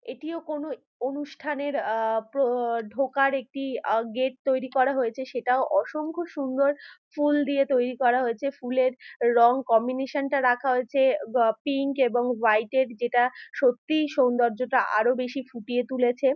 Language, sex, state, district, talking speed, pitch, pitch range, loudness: Bengali, female, West Bengal, Dakshin Dinajpur, 135 wpm, 260 Hz, 245-275 Hz, -25 LUFS